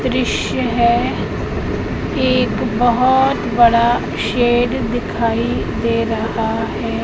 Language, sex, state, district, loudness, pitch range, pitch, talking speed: Hindi, female, Madhya Pradesh, Umaria, -17 LUFS, 230-245 Hz, 235 Hz, 85 wpm